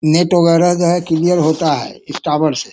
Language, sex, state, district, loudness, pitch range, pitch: Hindi, male, Bihar, Sitamarhi, -14 LUFS, 155-175 Hz, 165 Hz